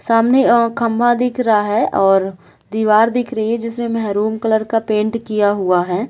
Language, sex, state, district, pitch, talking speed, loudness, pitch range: Hindi, female, Chhattisgarh, Raigarh, 220 Hz, 175 wpm, -16 LUFS, 210-230 Hz